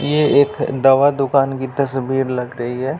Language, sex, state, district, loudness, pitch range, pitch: Hindi, male, Bihar, Jamui, -17 LUFS, 130-140 Hz, 135 Hz